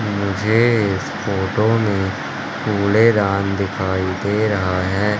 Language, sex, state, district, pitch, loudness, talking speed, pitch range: Hindi, male, Madhya Pradesh, Katni, 100 Hz, -18 LUFS, 105 wpm, 95-105 Hz